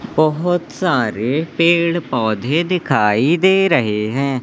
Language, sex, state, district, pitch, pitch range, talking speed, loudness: Hindi, male, Madhya Pradesh, Katni, 155 Hz, 125-175 Hz, 95 wpm, -16 LUFS